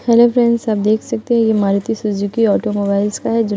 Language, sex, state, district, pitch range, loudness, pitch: Hindi, female, Bihar, Muzaffarpur, 205-230 Hz, -16 LUFS, 220 Hz